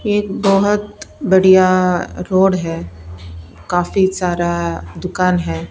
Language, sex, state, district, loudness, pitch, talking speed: Hindi, female, Bihar, Patna, -16 LUFS, 180 Hz, 105 wpm